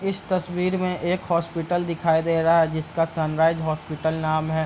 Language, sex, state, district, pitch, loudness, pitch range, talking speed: Hindi, male, Bihar, East Champaran, 165 Hz, -23 LUFS, 160-180 Hz, 180 wpm